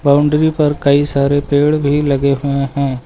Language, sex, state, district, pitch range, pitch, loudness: Hindi, male, Uttar Pradesh, Lucknow, 140-145 Hz, 140 Hz, -14 LUFS